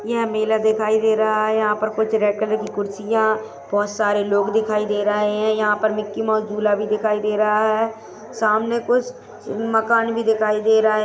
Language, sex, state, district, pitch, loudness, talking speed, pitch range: Hindi, female, Uttarakhand, Tehri Garhwal, 215 Hz, -20 LUFS, 205 wpm, 210-220 Hz